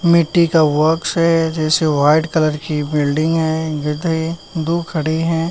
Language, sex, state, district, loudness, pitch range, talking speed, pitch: Hindi, male, Uttar Pradesh, Varanasi, -16 LUFS, 155-165 Hz, 140 wpm, 160 Hz